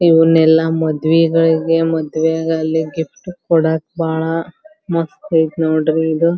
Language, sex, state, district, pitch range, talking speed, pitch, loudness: Kannada, female, Karnataka, Belgaum, 160-165 Hz, 95 wpm, 160 Hz, -15 LUFS